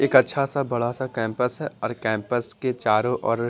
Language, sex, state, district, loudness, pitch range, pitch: Hindi, male, Bihar, Patna, -24 LUFS, 115-130 Hz, 125 Hz